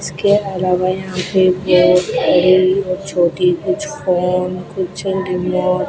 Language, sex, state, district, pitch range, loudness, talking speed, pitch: Hindi, female, Rajasthan, Bikaner, 180-190 Hz, -16 LUFS, 130 wpm, 185 Hz